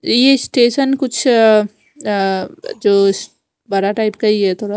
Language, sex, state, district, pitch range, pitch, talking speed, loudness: Hindi, female, Punjab, Fazilka, 200-240 Hz, 210 Hz, 165 wpm, -14 LUFS